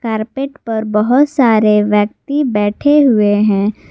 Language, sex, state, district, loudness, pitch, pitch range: Hindi, female, Jharkhand, Garhwa, -13 LUFS, 220 Hz, 210-275 Hz